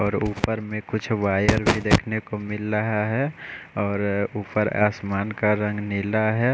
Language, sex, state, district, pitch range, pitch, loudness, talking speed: Hindi, male, Odisha, Khordha, 100-110 Hz, 105 Hz, -24 LUFS, 165 wpm